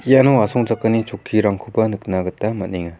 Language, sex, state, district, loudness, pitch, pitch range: Garo, male, Meghalaya, West Garo Hills, -18 LUFS, 110 Hz, 95-115 Hz